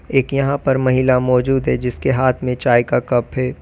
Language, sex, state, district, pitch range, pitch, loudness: Hindi, male, Uttar Pradesh, Lalitpur, 125-135 Hz, 130 Hz, -17 LUFS